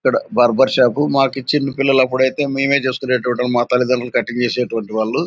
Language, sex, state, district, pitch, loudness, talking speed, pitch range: Telugu, male, Andhra Pradesh, Anantapur, 130 Hz, -16 LUFS, 170 wpm, 125-135 Hz